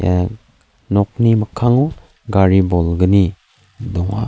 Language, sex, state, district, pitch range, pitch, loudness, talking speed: Garo, male, Meghalaya, South Garo Hills, 90-115 Hz, 100 Hz, -16 LUFS, 70 wpm